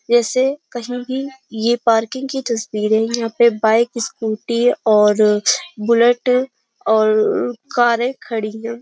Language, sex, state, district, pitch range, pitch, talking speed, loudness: Hindi, female, Uttar Pradesh, Jyotiba Phule Nagar, 220-245 Hz, 235 Hz, 120 wpm, -17 LUFS